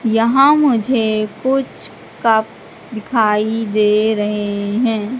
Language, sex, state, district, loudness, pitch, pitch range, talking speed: Hindi, female, Madhya Pradesh, Katni, -16 LUFS, 220 Hz, 215-245 Hz, 90 wpm